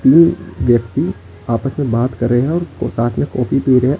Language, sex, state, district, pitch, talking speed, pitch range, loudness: Hindi, male, Chandigarh, Chandigarh, 120 Hz, 195 wpm, 115-135 Hz, -16 LUFS